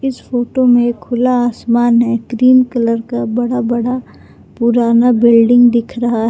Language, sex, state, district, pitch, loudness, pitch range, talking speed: Hindi, female, Jharkhand, Palamu, 240 Hz, -13 LUFS, 235-245 Hz, 150 wpm